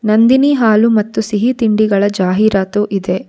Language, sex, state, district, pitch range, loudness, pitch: Kannada, female, Karnataka, Bangalore, 200-225 Hz, -13 LUFS, 215 Hz